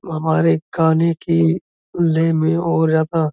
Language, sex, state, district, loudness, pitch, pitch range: Hindi, male, Uttar Pradesh, Budaun, -17 LUFS, 165 Hz, 160-165 Hz